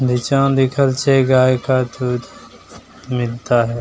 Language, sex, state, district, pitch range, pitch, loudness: Maithili, male, Bihar, Begusarai, 125-135 Hz, 130 Hz, -16 LUFS